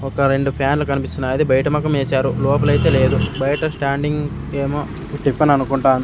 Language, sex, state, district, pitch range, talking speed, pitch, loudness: Telugu, male, Andhra Pradesh, Sri Satya Sai, 135-145 Hz, 150 wpm, 140 Hz, -18 LUFS